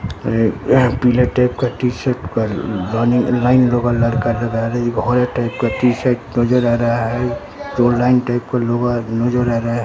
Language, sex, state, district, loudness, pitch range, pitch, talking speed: Hindi, male, Bihar, Katihar, -17 LUFS, 115-125 Hz, 120 Hz, 175 wpm